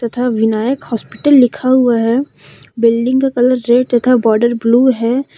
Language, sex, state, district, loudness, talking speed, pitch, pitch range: Hindi, female, Jharkhand, Deoghar, -13 LUFS, 155 wpm, 245 Hz, 230-255 Hz